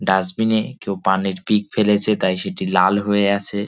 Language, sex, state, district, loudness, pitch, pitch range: Bengali, male, West Bengal, Dakshin Dinajpur, -19 LUFS, 100 Hz, 95-105 Hz